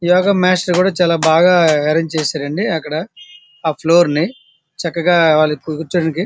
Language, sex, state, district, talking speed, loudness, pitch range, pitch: Telugu, male, Andhra Pradesh, Srikakulam, 170 wpm, -15 LUFS, 155-180 Hz, 165 Hz